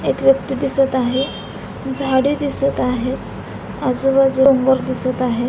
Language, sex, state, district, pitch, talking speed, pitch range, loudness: Marathi, female, Maharashtra, Pune, 265 Hz, 120 wpm, 250-270 Hz, -17 LUFS